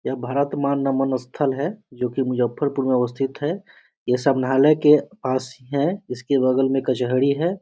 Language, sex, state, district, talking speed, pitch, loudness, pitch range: Hindi, male, Bihar, Muzaffarpur, 175 wpm, 135 Hz, -21 LUFS, 130-140 Hz